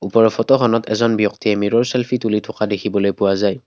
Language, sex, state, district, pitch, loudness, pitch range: Assamese, male, Assam, Kamrup Metropolitan, 110 Hz, -17 LUFS, 105-115 Hz